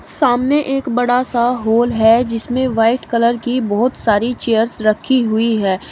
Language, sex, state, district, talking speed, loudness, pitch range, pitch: Hindi, female, Uttar Pradesh, Shamli, 160 wpm, -15 LUFS, 225-250 Hz, 235 Hz